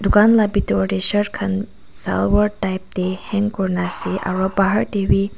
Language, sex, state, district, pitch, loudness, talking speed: Nagamese, female, Nagaland, Kohima, 190 Hz, -19 LUFS, 180 wpm